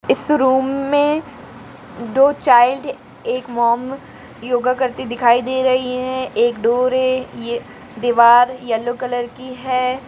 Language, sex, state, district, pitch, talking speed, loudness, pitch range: Hindi, female, Uttar Pradesh, Jalaun, 255 Hz, 130 wpm, -17 LUFS, 240-260 Hz